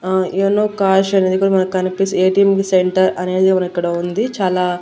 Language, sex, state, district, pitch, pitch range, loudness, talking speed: Telugu, female, Andhra Pradesh, Annamaya, 190 Hz, 185-195 Hz, -16 LUFS, 175 wpm